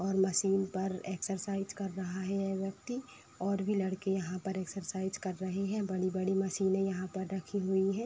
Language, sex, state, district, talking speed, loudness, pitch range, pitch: Hindi, female, Uttar Pradesh, Budaun, 185 wpm, -35 LUFS, 190-195 Hz, 190 Hz